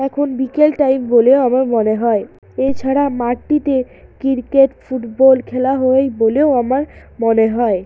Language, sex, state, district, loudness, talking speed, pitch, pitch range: Bengali, female, West Bengal, Jhargram, -15 LUFS, 130 wpm, 260 Hz, 240-270 Hz